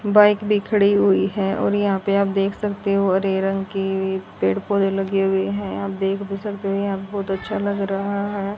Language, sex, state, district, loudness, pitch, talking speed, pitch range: Hindi, female, Haryana, Jhajjar, -21 LUFS, 195 Hz, 225 wpm, 195-200 Hz